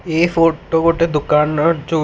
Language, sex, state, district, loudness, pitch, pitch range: Odia, male, Odisha, Khordha, -15 LUFS, 160 Hz, 150-165 Hz